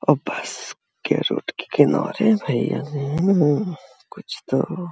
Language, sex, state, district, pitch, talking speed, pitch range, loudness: Hindi, male, Uttar Pradesh, Hamirpur, 155 Hz, 100 wpm, 140-180 Hz, -21 LUFS